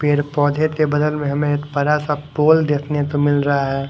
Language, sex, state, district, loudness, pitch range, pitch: Hindi, male, Odisha, Khordha, -18 LUFS, 145-150 Hz, 145 Hz